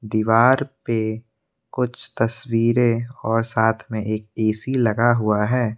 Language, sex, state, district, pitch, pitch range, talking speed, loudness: Hindi, male, Assam, Kamrup Metropolitan, 115 Hz, 110-120 Hz, 125 wpm, -21 LUFS